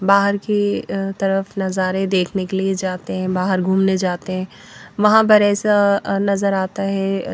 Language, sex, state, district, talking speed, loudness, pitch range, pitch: Hindi, female, Bihar, West Champaran, 155 wpm, -18 LUFS, 190-200 Hz, 195 Hz